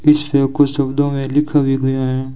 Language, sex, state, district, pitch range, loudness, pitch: Hindi, male, Rajasthan, Bikaner, 135-145 Hz, -16 LUFS, 140 Hz